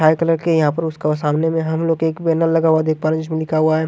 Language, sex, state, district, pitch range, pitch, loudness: Hindi, male, Haryana, Jhajjar, 155-165 Hz, 160 Hz, -18 LUFS